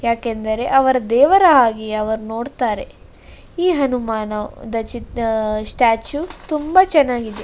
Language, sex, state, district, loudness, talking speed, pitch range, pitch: Kannada, female, Karnataka, Dakshina Kannada, -17 LUFS, 115 wpm, 220-280 Hz, 235 Hz